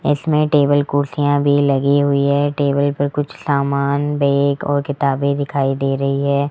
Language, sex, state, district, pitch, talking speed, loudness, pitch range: Hindi, female, Rajasthan, Jaipur, 140 Hz, 165 wpm, -17 LUFS, 140-145 Hz